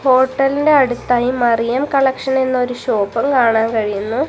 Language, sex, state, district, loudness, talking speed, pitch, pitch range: Malayalam, female, Kerala, Kasaragod, -15 LUFS, 110 wpm, 255 Hz, 235-270 Hz